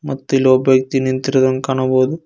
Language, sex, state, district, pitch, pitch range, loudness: Kannada, male, Karnataka, Koppal, 130 Hz, 130-135 Hz, -15 LUFS